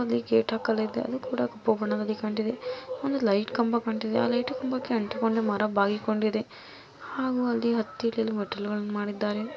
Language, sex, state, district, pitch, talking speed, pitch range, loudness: Kannada, female, Karnataka, Mysore, 225 Hz, 145 wpm, 210-245 Hz, -28 LUFS